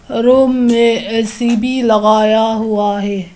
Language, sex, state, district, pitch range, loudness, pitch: Hindi, female, Arunachal Pradesh, Lower Dibang Valley, 215-235 Hz, -13 LUFS, 225 Hz